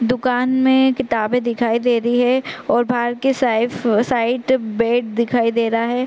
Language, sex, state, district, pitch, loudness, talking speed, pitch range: Hindi, female, Chhattisgarh, Korba, 240 Hz, -18 LUFS, 160 wpm, 230-250 Hz